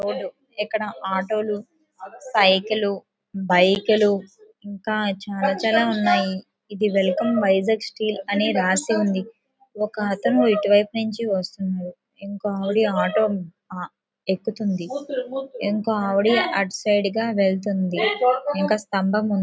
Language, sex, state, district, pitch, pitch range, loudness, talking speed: Telugu, female, Andhra Pradesh, Visakhapatnam, 205 Hz, 195-220 Hz, -22 LUFS, 100 wpm